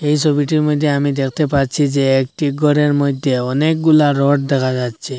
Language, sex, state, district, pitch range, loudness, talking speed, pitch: Bengali, male, Assam, Hailakandi, 135-150 Hz, -15 LUFS, 160 wpm, 145 Hz